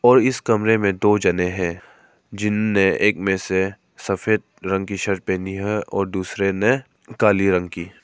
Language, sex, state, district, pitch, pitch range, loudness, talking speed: Hindi, male, Arunachal Pradesh, Papum Pare, 100 Hz, 95-105 Hz, -20 LUFS, 170 wpm